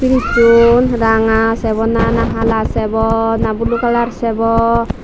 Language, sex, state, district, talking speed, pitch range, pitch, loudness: Chakma, female, Tripura, Dhalai, 120 wpm, 225-235 Hz, 230 Hz, -13 LUFS